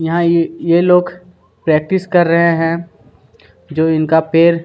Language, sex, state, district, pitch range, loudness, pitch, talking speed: Hindi, male, Chhattisgarh, Kabirdham, 165-175 Hz, -14 LUFS, 170 Hz, 130 wpm